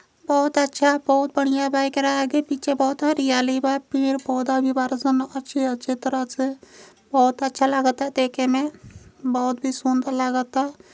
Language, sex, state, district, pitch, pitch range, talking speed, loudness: Bhojpuri, female, Uttar Pradesh, Gorakhpur, 270 Hz, 260-275 Hz, 160 wpm, -22 LUFS